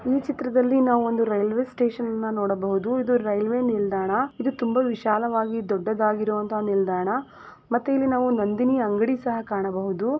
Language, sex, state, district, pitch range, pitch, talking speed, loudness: Kannada, female, Karnataka, Gulbarga, 210-250 Hz, 230 Hz, 145 wpm, -24 LUFS